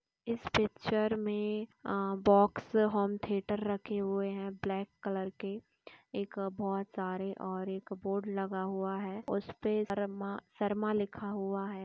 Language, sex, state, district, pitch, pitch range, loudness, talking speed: Hindi, female, Uttar Pradesh, Jalaun, 200 Hz, 195-210 Hz, -35 LUFS, 155 wpm